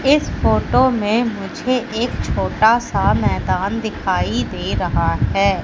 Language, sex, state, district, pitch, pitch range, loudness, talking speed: Hindi, female, Madhya Pradesh, Katni, 235 Hz, 220-255 Hz, -18 LUFS, 130 wpm